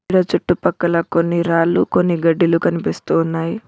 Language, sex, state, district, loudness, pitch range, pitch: Telugu, female, Telangana, Mahabubabad, -17 LUFS, 165-175 Hz, 170 Hz